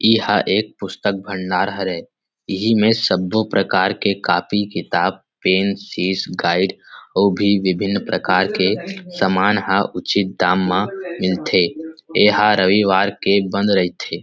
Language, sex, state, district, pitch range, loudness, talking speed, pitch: Chhattisgarhi, male, Chhattisgarh, Rajnandgaon, 95-105 Hz, -18 LUFS, 130 wpm, 100 Hz